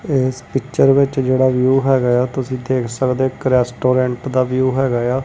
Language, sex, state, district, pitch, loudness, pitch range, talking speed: Punjabi, male, Punjab, Kapurthala, 130 Hz, -17 LUFS, 125-130 Hz, 205 wpm